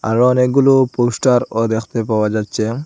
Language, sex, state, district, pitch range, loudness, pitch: Bengali, male, Assam, Hailakandi, 110-125 Hz, -15 LUFS, 120 Hz